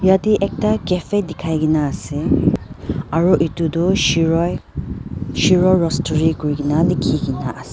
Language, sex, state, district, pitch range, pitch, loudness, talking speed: Nagamese, female, Nagaland, Dimapur, 155-185 Hz, 165 Hz, -18 LUFS, 110 wpm